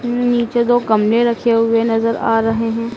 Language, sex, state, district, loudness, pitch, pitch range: Hindi, female, Madhya Pradesh, Dhar, -15 LUFS, 230 Hz, 225-240 Hz